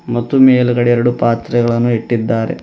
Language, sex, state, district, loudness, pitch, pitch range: Kannada, male, Karnataka, Bidar, -13 LUFS, 120 Hz, 115-120 Hz